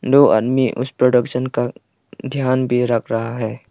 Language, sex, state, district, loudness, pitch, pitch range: Hindi, male, Arunachal Pradesh, Lower Dibang Valley, -18 LUFS, 125 Hz, 120-130 Hz